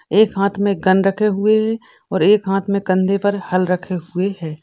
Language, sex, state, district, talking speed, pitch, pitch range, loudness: Hindi, female, Uttar Pradesh, Ghazipur, 235 wpm, 195 Hz, 185-205 Hz, -17 LUFS